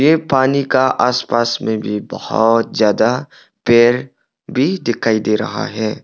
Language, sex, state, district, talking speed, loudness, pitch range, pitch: Hindi, male, Arunachal Pradesh, Longding, 140 wpm, -16 LUFS, 110-130 Hz, 120 Hz